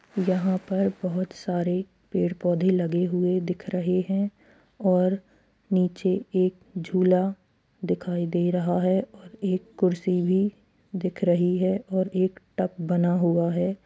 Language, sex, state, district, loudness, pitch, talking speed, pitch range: Hindi, female, Bihar, Gopalganj, -25 LUFS, 185 Hz, 140 wpm, 180-190 Hz